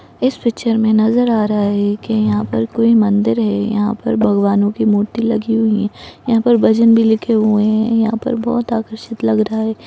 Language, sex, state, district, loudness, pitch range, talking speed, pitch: Hindi, female, Uttar Pradesh, Ghazipur, -15 LUFS, 210-230 Hz, 215 wpm, 220 Hz